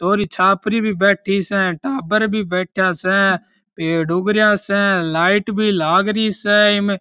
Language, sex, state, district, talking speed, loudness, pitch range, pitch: Marwari, male, Rajasthan, Churu, 160 wpm, -17 LUFS, 185-210 Hz, 200 Hz